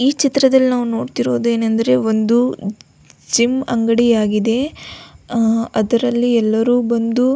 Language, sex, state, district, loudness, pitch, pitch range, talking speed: Kannada, female, Karnataka, Belgaum, -16 LUFS, 235 Hz, 225-250 Hz, 105 wpm